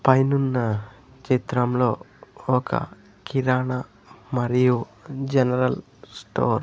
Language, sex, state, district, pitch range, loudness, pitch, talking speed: Telugu, male, Andhra Pradesh, Sri Satya Sai, 125-130 Hz, -23 LUFS, 125 Hz, 70 wpm